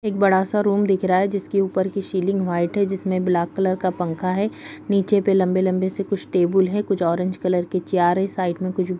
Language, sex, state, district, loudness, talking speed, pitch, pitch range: Kumaoni, female, Uttarakhand, Uttarkashi, -21 LUFS, 245 wpm, 190 Hz, 185-195 Hz